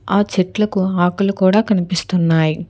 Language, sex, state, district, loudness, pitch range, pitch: Telugu, female, Telangana, Hyderabad, -16 LUFS, 175-200 Hz, 185 Hz